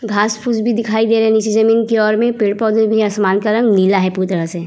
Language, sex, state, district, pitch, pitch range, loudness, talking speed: Hindi, female, Bihar, Vaishali, 220 Hz, 200-225 Hz, -14 LUFS, 295 wpm